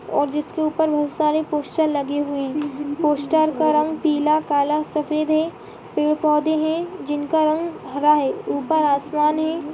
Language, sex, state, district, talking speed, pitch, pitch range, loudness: Hindi, female, Chhattisgarh, Jashpur, 180 wpm, 300 Hz, 295-315 Hz, -21 LUFS